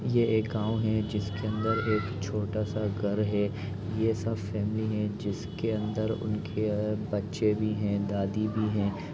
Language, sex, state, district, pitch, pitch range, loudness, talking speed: Hindi, male, Chhattisgarh, Rajnandgaon, 105 Hz, 105-110 Hz, -30 LUFS, 155 wpm